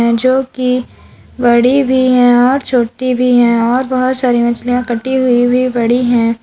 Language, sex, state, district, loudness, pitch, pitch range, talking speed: Hindi, female, Uttar Pradesh, Lalitpur, -12 LUFS, 250 Hz, 240-255 Hz, 170 wpm